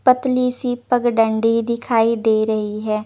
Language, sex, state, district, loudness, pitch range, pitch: Hindi, female, Chandigarh, Chandigarh, -18 LUFS, 220-245 Hz, 230 Hz